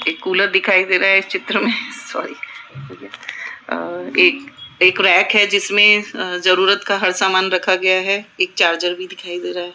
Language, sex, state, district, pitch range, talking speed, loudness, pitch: Hindi, female, Rajasthan, Jaipur, 185-210 Hz, 185 wpm, -15 LUFS, 195 Hz